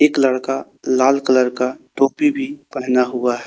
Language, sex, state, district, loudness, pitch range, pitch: Hindi, male, Jharkhand, Deoghar, -18 LUFS, 125-140 Hz, 130 Hz